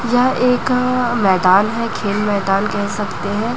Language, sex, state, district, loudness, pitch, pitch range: Hindi, female, Chhattisgarh, Raipur, -16 LUFS, 215 Hz, 200-245 Hz